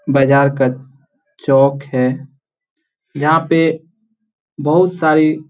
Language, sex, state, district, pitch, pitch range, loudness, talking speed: Hindi, male, Jharkhand, Jamtara, 150 Hz, 140-165 Hz, -15 LUFS, 85 wpm